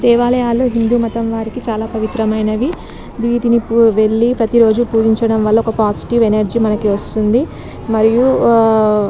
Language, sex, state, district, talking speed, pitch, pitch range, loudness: Telugu, female, Telangana, Nalgonda, 125 wpm, 225 Hz, 220-235 Hz, -14 LUFS